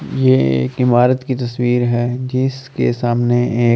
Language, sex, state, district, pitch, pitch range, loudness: Hindi, male, Delhi, New Delhi, 120 Hz, 120-125 Hz, -16 LUFS